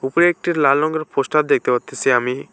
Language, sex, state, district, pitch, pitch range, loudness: Bengali, male, West Bengal, Alipurduar, 140 Hz, 130-155 Hz, -18 LUFS